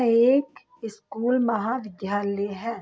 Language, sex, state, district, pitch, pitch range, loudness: Hindi, female, Bihar, Saharsa, 230 Hz, 205-250 Hz, -24 LUFS